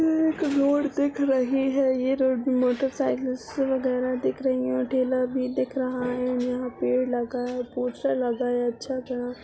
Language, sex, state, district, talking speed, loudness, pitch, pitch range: Hindi, female, Uttar Pradesh, Budaun, 180 wpm, -25 LUFS, 255 Hz, 250-270 Hz